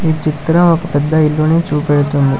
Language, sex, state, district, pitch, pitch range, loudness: Telugu, male, Telangana, Hyderabad, 155 Hz, 145-160 Hz, -13 LUFS